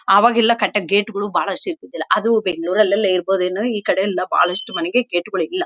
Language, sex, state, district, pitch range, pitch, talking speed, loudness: Kannada, female, Karnataka, Bellary, 185-230 Hz, 205 Hz, 140 wpm, -18 LUFS